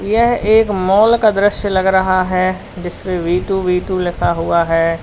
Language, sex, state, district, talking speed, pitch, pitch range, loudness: Hindi, male, Uttar Pradesh, Lalitpur, 190 wpm, 185 Hz, 175-205 Hz, -15 LUFS